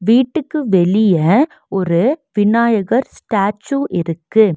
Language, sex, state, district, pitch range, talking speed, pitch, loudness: Tamil, female, Tamil Nadu, Nilgiris, 190-260 Hz, 80 wpm, 215 Hz, -15 LUFS